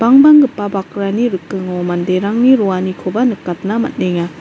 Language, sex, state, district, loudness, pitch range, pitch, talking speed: Garo, female, Meghalaya, North Garo Hills, -14 LUFS, 185-235 Hz, 200 Hz, 95 wpm